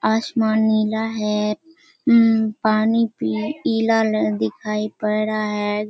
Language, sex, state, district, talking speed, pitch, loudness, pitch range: Hindi, female, Bihar, Kishanganj, 100 wpm, 215 Hz, -20 LUFS, 210-225 Hz